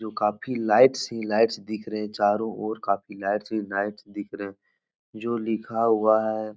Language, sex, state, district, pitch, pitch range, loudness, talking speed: Hindi, male, Bihar, Jahanabad, 110 Hz, 105-110 Hz, -25 LUFS, 200 wpm